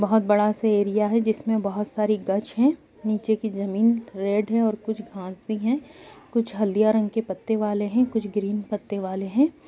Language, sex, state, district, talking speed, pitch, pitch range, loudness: Hindi, female, Bihar, Madhepura, 190 wpm, 215 Hz, 205-225 Hz, -24 LUFS